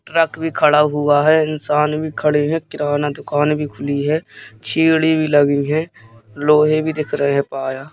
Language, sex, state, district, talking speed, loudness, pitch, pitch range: Hindi, male, Madhya Pradesh, Katni, 190 wpm, -17 LUFS, 150 Hz, 145-155 Hz